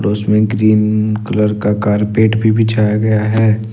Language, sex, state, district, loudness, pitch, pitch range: Hindi, male, Jharkhand, Ranchi, -13 LUFS, 110 Hz, 105-110 Hz